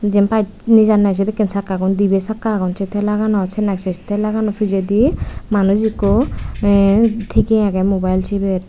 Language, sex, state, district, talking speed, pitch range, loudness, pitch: Chakma, female, Tripura, Unakoti, 145 wpm, 195-215 Hz, -16 LUFS, 205 Hz